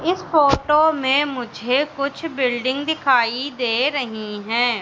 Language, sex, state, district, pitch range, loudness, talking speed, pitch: Hindi, female, Madhya Pradesh, Katni, 245-295 Hz, -19 LUFS, 125 wpm, 270 Hz